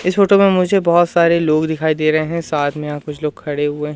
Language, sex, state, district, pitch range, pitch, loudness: Hindi, male, Madhya Pradesh, Umaria, 150-175 Hz, 155 Hz, -16 LUFS